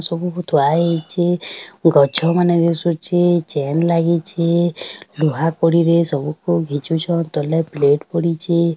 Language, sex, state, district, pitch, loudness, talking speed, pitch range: Odia, female, Odisha, Sambalpur, 170 Hz, -17 LUFS, 105 wpm, 160-170 Hz